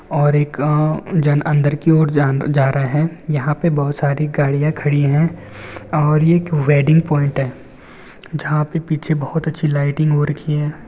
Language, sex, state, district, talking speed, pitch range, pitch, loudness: Hindi, male, Andhra Pradesh, Visakhapatnam, 180 wpm, 145-155 Hz, 150 Hz, -17 LUFS